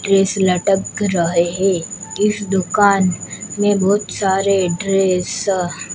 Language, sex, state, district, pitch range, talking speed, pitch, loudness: Hindi, male, Gujarat, Gandhinagar, 180-200 Hz, 110 wpm, 195 Hz, -17 LUFS